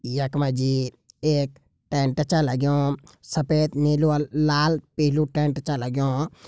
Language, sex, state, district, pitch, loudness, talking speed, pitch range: Garhwali, male, Uttarakhand, Tehri Garhwal, 145 Hz, -23 LUFS, 130 wpm, 135-155 Hz